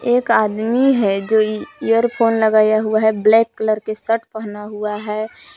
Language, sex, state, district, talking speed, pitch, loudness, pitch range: Hindi, female, Jharkhand, Palamu, 160 wpm, 220 Hz, -17 LUFS, 215-230 Hz